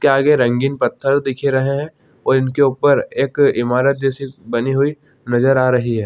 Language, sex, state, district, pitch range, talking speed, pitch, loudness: Hindi, male, Chhattisgarh, Bilaspur, 125-140 Hz, 190 wpm, 135 Hz, -16 LUFS